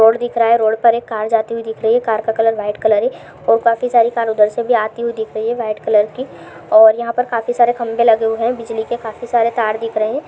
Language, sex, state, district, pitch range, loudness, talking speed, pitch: Hindi, female, Chhattisgarh, Rajnandgaon, 220-235 Hz, -16 LUFS, 300 wpm, 230 Hz